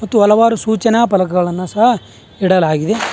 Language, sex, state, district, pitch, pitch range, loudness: Kannada, male, Karnataka, Bangalore, 205 Hz, 185-225 Hz, -14 LUFS